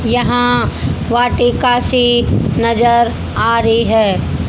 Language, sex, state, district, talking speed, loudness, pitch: Hindi, female, Haryana, Rohtak, 95 wpm, -13 LUFS, 230 Hz